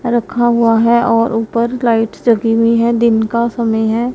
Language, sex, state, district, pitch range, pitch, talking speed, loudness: Hindi, female, Punjab, Pathankot, 225-235 Hz, 230 Hz, 190 wpm, -13 LUFS